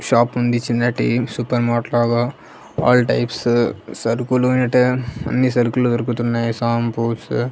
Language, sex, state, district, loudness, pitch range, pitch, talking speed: Telugu, male, Andhra Pradesh, Annamaya, -18 LUFS, 120-125 Hz, 120 Hz, 130 wpm